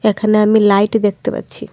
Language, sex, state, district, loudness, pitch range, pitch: Bengali, female, Tripura, Dhalai, -14 LUFS, 205-215 Hz, 215 Hz